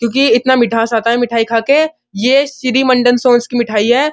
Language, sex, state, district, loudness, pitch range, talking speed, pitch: Hindi, male, Uttar Pradesh, Muzaffarnagar, -12 LUFS, 235-260 Hz, 205 wpm, 245 Hz